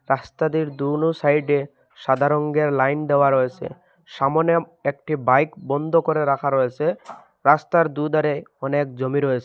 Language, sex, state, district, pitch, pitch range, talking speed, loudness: Bengali, male, Assam, Hailakandi, 145 Hz, 135-155 Hz, 125 wpm, -21 LUFS